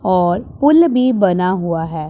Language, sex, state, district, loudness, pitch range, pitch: Hindi, male, Punjab, Pathankot, -15 LUFS, 175-250 Hz, 185 Hz